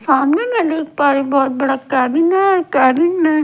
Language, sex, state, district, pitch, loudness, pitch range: Hindi, female, Himachal Pradesh, Shimla, 290 Hz, -15 LUFS, 270-335 Hz